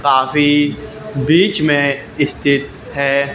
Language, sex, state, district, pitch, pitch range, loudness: Hindi, male, Haryana, Charkhi Dadri, 140 Hz, 140-145 Hz, -15 LUFS